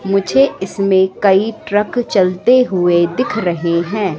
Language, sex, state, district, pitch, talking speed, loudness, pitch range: Hindi, female, Madhya Pradesh, Katni, 195 Hz, 130 wpm, -14 LUFS, 180-220 Hz